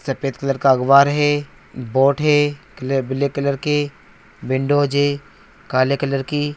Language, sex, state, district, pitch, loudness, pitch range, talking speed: Hindi, male, Bihar, Araria, 140 Hz, -18 LUFS, 135-145 Hz, 145 wpm